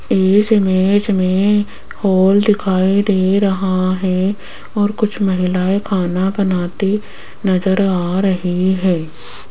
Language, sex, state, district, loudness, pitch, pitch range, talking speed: Hindi, female, Rajasthan, Jaipur, -15 LUFS, 190 Hz, 185-200 Hz, 105 wpm